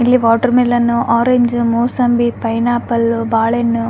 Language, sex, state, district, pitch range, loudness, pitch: Kannada, female, Karnataka, Raichur, 230-240 Hz, -14 LUFS, 235 Hz